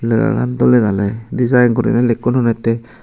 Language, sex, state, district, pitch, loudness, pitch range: Chakma, male, Tripura, Unakoti, 120 Hz, -15 LUFS, 115-125 Hz